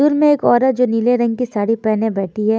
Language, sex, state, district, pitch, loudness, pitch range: Hindi, female, Punjab, Fazilka, 230 Hz, -16 LUFS, 220-250 Hz